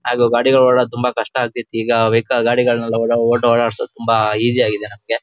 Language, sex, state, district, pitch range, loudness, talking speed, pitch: Kannada, male, Karnataka, Shimoga, 115-120 Hz, -16 LUFS, 160 wpm, 115 Hz